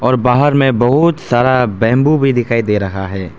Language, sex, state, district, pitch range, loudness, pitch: Hindi, male, Arunachal Pradesh, Papum Pare, 110-135 Hz, -13 LUFS, 125 Hz